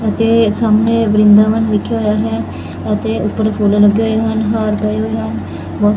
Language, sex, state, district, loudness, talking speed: Punjabi, female, Punjab, Fazilka, -14 LUFS, 160 wpm